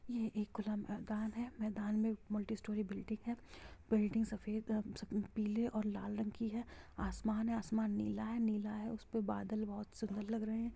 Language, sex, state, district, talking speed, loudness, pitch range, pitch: Hindi, female, Bihar, Sitamarhi, 200 wpm, -40 LUFS, 210-225 Hz, 215 Hz